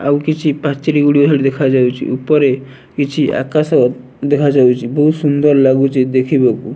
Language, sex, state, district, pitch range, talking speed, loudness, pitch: Odia, male, Odisha, Nuapada, 130-145 Hz, 125 wpm, -13 LUFS, 140 Hz